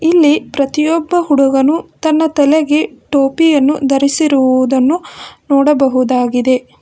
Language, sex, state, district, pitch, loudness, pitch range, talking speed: Kannada, female, Karnataka, Bangalore, 285 Hz, -12 LUFS, 270-315 Hz, 70 wpm